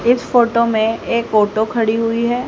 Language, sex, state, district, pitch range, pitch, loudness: Hindi, female, Haryana, Charkhi Dadri, 220-235 Hz, 230 Hz, -16 LUFS